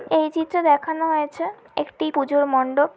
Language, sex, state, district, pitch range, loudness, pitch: Bengali, female, West Bengal, Malda, 285-325 Hz, -21 LUFS, 310 Hz